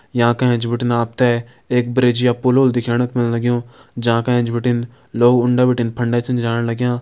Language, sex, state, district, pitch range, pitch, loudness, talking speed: Hindi, male, Uttarakhand, Uttarkashi, 120-125 Hz, 120 Hz, -17 LUFS, 195 wpm